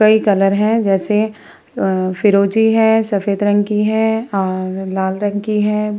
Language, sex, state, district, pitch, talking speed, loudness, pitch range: Hindi, female, Bihar, Vaishali, 205 Hz, 160 wpm, -16 LUFS, 195-215 Hz